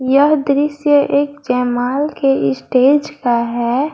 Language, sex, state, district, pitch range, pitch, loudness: Hindi, female, Jharkhand, Garhwa, 245-290 Hz, 275 Hz, -15 LUFS